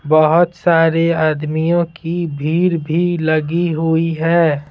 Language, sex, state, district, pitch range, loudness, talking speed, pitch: Hindi, male, Bihar, Patna, 155-170 Hz, -16 LUFS, 115 wpm, 165 Hz